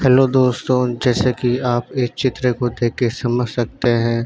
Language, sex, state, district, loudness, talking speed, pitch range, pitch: Hindi, male, Uttarakhand, Tehri Garhwal, -18 LUFS, 185 wpm, 120-130 Hz, 125 Hz